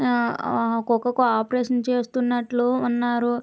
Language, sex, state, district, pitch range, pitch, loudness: Telugu, female, Andhra Pradesh, Krishna, 240-250 Hz, 245 Hz, -23 LUFS